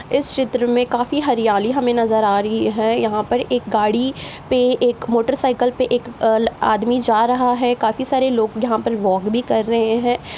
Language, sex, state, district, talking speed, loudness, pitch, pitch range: Hindi, female, Uttar Pradesh, Ghazipur, 195 wpm, -18 LUFS, 240 Hz, 220-250 Hz